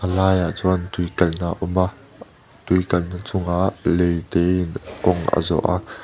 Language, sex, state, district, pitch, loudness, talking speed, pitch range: Mizo, male, Mizoram, Aizawl, 90 Hz, -21 LUFS, 190 wpm, 90-95 Hz